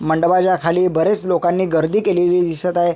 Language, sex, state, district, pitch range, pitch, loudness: Marathi, male, Maharashtra, Sindhudurg, 170-185 Hz, 175 Hz, -16 LUFS